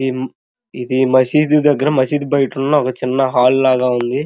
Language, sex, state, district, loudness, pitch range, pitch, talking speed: Telugu, male, Andhra Pradesh, Krishna, -15 LUFS, 130-145 Hz, 130 Hz, 155 wpm